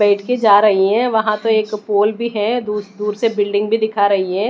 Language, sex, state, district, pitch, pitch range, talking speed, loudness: Hindi, female, Odisha, Malkangiri, 210 Hz, 205-220 Hz, 255 wpm, -16 LUFS